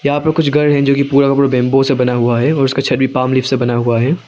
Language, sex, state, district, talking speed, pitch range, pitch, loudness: Hindi, male, Arunachal Pradesh, Lower Dibang Valley, 350 wpm, 125-140 Hz, 135 Hz, -13 LUFS